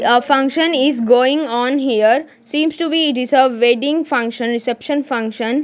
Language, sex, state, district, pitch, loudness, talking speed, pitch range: English, female, Maharashtra, Gondia, 265 Hz, -15 LUFS, 170 wpm, 240-290 Hz